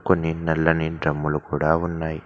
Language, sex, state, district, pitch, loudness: Telugu, male, Telangana, Mahabubabad, 80 Hz, -23 LUFS